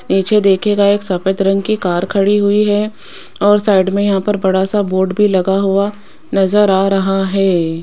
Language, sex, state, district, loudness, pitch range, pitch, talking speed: Hindi, female, Rajasthan, Jaipur, -14 LUFS, 190-205 Hz, 195 Hz, 190 wpm